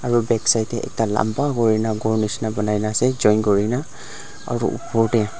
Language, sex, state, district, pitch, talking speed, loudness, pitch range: Nagamese, male, Nagaland, Dimapur, 110 Hz, 155 wpm, -20 LUFS, 110-120 Hz